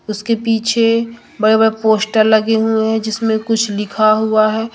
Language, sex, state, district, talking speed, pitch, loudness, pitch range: Hindi, female, Madhya Pradesh, Umaria, 165 wpm, 220 Hz, -14 LUFS, 215-225 Hz